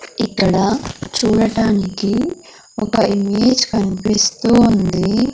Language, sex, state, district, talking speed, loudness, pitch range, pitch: Telugu, female, Andhra Pradesh, Sri Satya Sai, 65 wpm, -16 LUFS, 200-235 Hz, 220 Hz